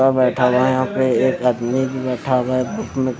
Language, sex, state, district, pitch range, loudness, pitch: Hindi, male, Delhi, New Delhi, 125-130 Hz, -18 LUFS, 130 Hz